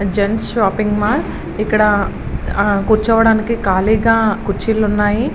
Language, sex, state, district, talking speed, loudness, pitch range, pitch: Telugu, female, Andhra Pradesh, Srikakulam, 100 wpm, -15 LUFS, 205-225 Hz, 215 Hz